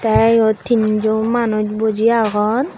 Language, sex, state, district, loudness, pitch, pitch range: Chakma, female, Tripura, Unakoti, -16 LUFS, 220 Hz, 215-230 Hz